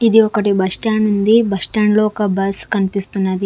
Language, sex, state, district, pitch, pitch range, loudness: Telugu, female, Andhra Pradesh, Sri Satya Sai, 205 Hz, 195-215 Hz, -15 LUFS